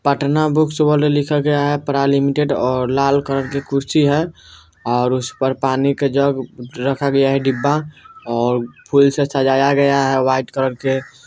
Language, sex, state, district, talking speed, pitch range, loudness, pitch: Bajjika, male, Bihar, Vaishali, 185 wpm, 130-145 Hz, -17 LUFS, 140 Hz